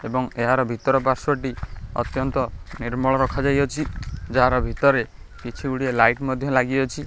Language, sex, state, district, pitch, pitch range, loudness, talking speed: Odia, male, Odisha, Khordha, 130 Hz, 120-135 Hz, -22 LUFS, 120 wpm